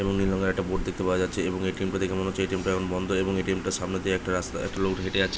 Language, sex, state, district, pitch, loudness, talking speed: Bengali, male, West Bengal, Jhargram, 95 Hz, -27 LUFS, 335 wpm